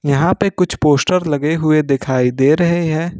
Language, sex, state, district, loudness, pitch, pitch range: Hindi, male, Jharkhand, Ranchi, -15 LUFS, 155 Hz, 140-170 Hz